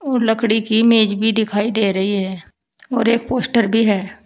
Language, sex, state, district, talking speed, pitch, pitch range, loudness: Hindi, female, Uttar Pradesh, Saharanpur, 195 wpm, 220 Hz, 205-230 Hz, -17 LUFS